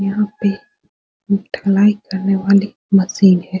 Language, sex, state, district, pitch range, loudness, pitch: Hindi, female, Bihar, Supaul, 195-205 Hz, -16 LUFS, 200 Hz